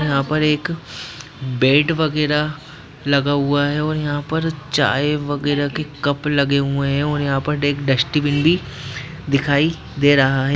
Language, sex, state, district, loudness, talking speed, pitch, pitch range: Hindi, male, Bihar, Lakhisarai, -18 LUFS, 160 wpm, 145 Hz, 140-150 Hz